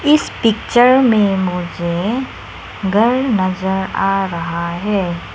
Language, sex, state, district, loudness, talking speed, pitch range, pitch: Hindi, female, Arunachal Pradesh, Lower Dibang Valley, -16 LUFS, 100 wpm, 180-230 Hz, 195 Hz